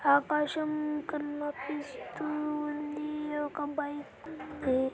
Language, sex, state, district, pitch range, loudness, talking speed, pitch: Telugu, male, Andhra Pradesh, Anantapur, 290-300 Hz, -33 LUFS, 75 wpm, 295 Hz